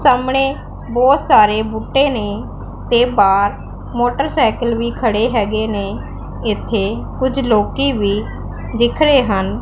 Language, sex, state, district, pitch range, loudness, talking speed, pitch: Punjabi, female, Punjab, Pathankot, 215-265 Hz, -16 LUFS, 120 wpm, 235 Hz